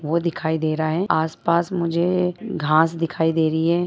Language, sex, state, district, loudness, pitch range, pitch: Hindi, female, Bihar, Madhepura, -21 LUFS, 160-175 Hz, 165 Hz